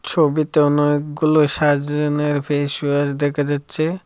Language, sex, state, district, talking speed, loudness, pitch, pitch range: Bengali, male, Tripura, Dhalai, 90 wpm, -18 LUFS, 145 Hz, 145-150 Hz